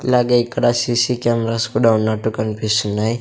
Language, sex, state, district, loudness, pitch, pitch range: Telugu, male, Andhra Pradesh, Sri Satya Sai, -17 LUFS, 115 Hz, 110-120 Hz